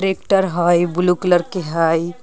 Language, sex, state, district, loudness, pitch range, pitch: Magahi, female, Jharkhand, Palamu, -17 LUFS, 170-185 Hz, 175 Hz